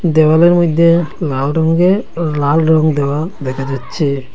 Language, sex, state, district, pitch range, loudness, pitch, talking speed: Bengali, male, Assam, Hailakandi, 140-170 Hz, -13 LUFS, 160 Hz, 125 wpm